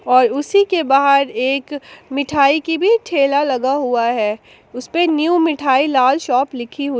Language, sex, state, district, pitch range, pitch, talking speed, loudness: Hindi, female, Jharkhand, Palamu, 255-305 Hz, 275 Hz, 165 wpm, -16 LUFS